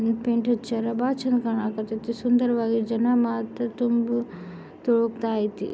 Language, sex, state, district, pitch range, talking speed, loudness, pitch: Kannada, female, Karnataka, Belgaum, 225-240 Hz, 125 wpm, -25 LUFS, 230 Hz